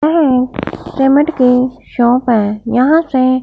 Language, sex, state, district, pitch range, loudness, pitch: Hindi, female, Punjab, Fazilka, 245-285 Hz, -13 LUFS, 255 Hz